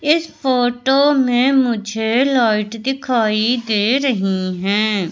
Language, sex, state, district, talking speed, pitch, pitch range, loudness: Hindi, male, Madhya Pradesh, Katni, 105 wpm, 245 Hz, 215-265 Hz, -17 LUFS